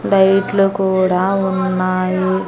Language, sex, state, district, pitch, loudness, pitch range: Telugu, female, Andhra Pradesh, Annamaya, 190 Hz, -15 LUFS, 185-195 Hz